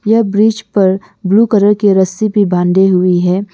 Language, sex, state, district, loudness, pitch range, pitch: Hindi, female, Arunachal Pradesh, Lower Dibang Valley, -11 LUFS, 185-215 Hz, 200 Hz